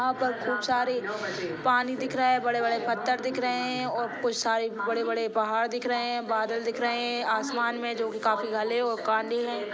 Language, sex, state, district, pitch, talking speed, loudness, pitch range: Hindi, female, Chhattisgarh, Sukma, 235 Hz, 220 wpm, -28 LUFS, 225-245 Hz